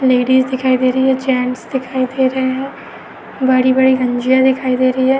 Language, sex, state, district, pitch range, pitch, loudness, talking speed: Hindi, female, Uttar Pradesh, Etah, 255-260 Hz, 260 Hz, -15 LUFS, 185 wpm